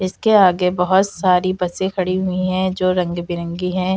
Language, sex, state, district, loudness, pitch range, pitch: Hindi, female, Uttar Pradesh, Jalaun, -18 LUFS, 180-190 Hz, 185 Hz